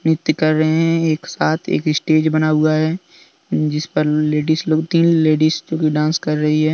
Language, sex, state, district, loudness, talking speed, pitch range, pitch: Hindi, male, Jharkhand, Deoghar, -17 LUFS, 195 wpm, 155-160 Hz, 155 Hz